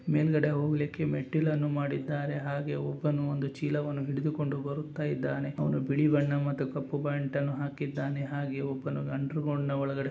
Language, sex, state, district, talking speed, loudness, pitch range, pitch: Kannada, male, Karnataka, Gulbarga, 140 wpm, -31 LUFS, 140-150 Hz, 145 Hz